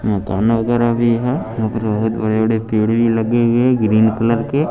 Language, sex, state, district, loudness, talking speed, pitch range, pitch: Hindi, male, Chandigarh, Chandigarh, -16 LUFS, 140 wpm, 110-120 Hz, 115 Hz